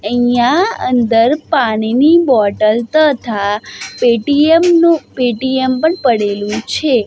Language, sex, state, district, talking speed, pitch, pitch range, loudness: Gujarati, female, Gujarat, Gandhinagar, 95 wpm, 245 Hz, 225-305 Hz, -13 LUFS